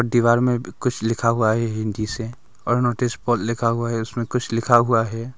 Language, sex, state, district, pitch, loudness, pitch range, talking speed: Hindi, male, Arunachal Pradesh, Longding, 115 Hz, -21 LUFS, 115-120 Hz, 225 wpm